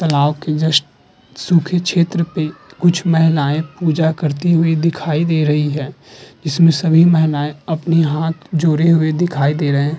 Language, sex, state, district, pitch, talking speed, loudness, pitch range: Hindi, male, Uttar Pradesh, Muzaffarnagar, 160 Hz, 155 wpm, -15 LUFS, 150-165 Hz